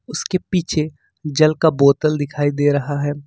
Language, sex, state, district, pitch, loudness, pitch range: Hindi, male, Jharkhand, Ranchi, 150 Hz, -18 LUFS, 145-155 Hz